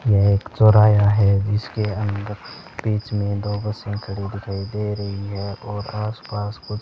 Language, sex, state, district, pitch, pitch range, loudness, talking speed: Hindi, male, Rajasthan, Bikaner, 105 Hz, 100-105 Hz, -21 LUFS, 175 wpm